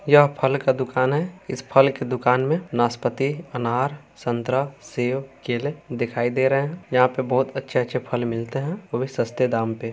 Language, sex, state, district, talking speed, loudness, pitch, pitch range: Hindi, male, Bihar, Saran, 185 wpm, -23 LUFS, 130 Hz, 120-140 Hz